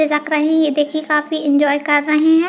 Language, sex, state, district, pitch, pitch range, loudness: Hindi, female, Chhattisgarh, Bilaspur, 305 Hz, 295-310 Hz, -16 LUFS